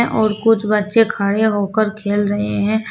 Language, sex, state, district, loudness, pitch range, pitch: Hindi, female, Jharkhand, Deoghar, -17 LUFS, 205-220 Hz, 210 Hz